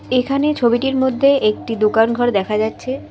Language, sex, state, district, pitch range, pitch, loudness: Bengali, female, West Bengal, Alipurduar, 220-265 Hz, 245 Hz, -17 LUFS